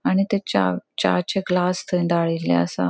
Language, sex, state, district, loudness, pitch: Konkani, female, Goa, North and South Goa, -22 LUFS, 170 Hz